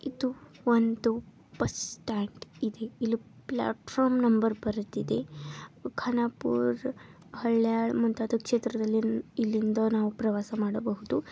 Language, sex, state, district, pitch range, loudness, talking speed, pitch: Kannada, female, Karnataka, Belgaum, 215-235 Hz, -29 LUFS, 95 wpm, 225 Hz